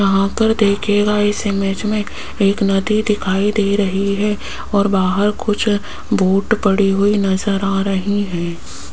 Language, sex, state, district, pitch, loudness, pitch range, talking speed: Hindi, female, Rajasthan, Jaipur, 200 Hz, -17 LUFS, 195-210 Hz, 150 wpm